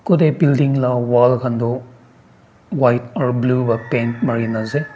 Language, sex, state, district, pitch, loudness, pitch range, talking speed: Nagamese, male, Nagaland, Dimapur, 125 Hz, -17 LUFS, 120-135 Hz, 170 wpm